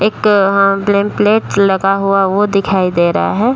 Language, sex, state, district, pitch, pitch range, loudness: Hindi, male, Bihar, Jahanabad, 200 Hz, 195-205 Hz, -12 LUFS